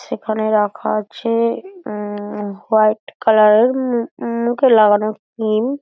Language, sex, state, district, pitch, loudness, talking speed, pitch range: Bengali, female, West Bengal, Dakshin Dinajpur, 215 Hz, -17 LUFS, 125 wpm, 210-235 Hz